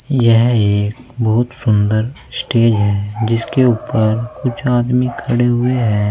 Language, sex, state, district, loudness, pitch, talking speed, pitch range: Hindi, male, Uttar Pradesh, Saharanpur, -14 LUFS, 115 Hz, 130 wpm, 110-125 Hz